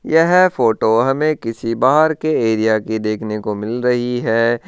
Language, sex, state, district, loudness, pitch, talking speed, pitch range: Hindi, male, Rajasthan, Churu, -16 LUFS, 115 Hz, 165 wpm, 110-150 Hz